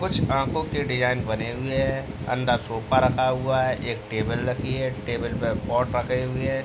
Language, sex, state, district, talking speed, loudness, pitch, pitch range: Hindi, male, Uttar Pradesh, Jalaun, 200 wpm, -25 LUFS, 125 Hz, 120-130 Hz